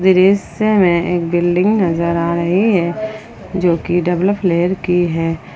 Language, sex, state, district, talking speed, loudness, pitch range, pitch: Hindi, female, Jharkhand, Ranchi, 150 wpm, -15 LUFS, 170-195 Hz, 180 Hz